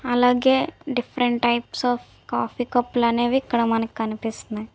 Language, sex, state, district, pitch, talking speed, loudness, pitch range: Telugu, female, Andhra Pradesh, Visakhapatnam, 240 Hz, 165 wpm, -22 LUFS, 230-245 Hz